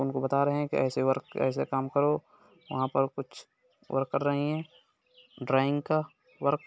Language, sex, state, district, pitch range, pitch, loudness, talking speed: Hindi, male, Bihar, East Champaran, 135-150 Hz, 140 Hz, -29 LUFS, 180 wpm